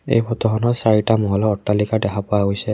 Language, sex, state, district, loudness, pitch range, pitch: Assamese, male, Assam, Kamrup Metropolitan, -18 LUFS, 105-115 Hz, 110 Hz